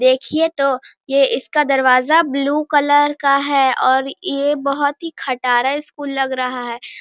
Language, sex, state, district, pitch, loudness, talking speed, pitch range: Hindi, female, Bihar, Bhagalpur, 275 Hz, -17 LUFS, 155 wpm, 260-290 Hz